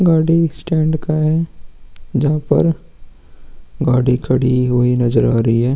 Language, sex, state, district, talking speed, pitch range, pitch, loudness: Hindi, male, Bihar, Vaishali, 135 wpm, 125-160 Hz, 145 Hz, -16 LUFS